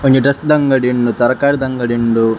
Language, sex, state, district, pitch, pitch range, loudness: Tulu, male, Karnataka, Dakshina Kannada, 130 Hz, 120-140 Hz, -14 LUFS